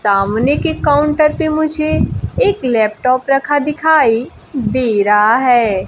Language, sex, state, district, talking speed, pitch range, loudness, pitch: Hindi, female, Bihar, Kaimur, 125 wpm, 220-300 Hz, -14 LUFS, 255 Hz